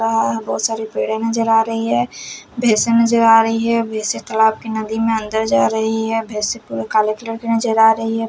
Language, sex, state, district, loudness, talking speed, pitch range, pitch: Hindi, female, Bihar, Kaimur, -17 LUFS, 225 wpm, 215-225 Hz, 225 Hz